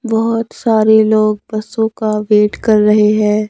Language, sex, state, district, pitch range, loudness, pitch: Hindi, male, Himachal Pradesh, Shimla, 210-220 Hz, -13 LUFS, 215 Hz